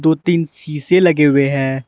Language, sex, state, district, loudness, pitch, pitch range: Hindi, male, Arunachal Pradesh, Lower Dibang Valley, -14 LUFS, 155 Hz, 140-170 Hz